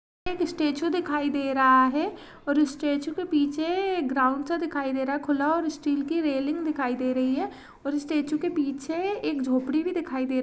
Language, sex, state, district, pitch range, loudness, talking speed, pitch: Hindi, female, Chhattisgarh, Rajnandgaon, 275-330 Hz, -26 LUFS, 205 wpm, 295 Hz